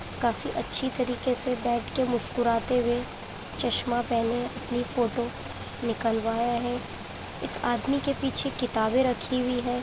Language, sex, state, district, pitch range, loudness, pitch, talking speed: Hindi, female, Uttar Pradesh, Jyotiba Phule Nagar, 235-250 Hz, -28 LUFS, 245 Hz, 130 wpm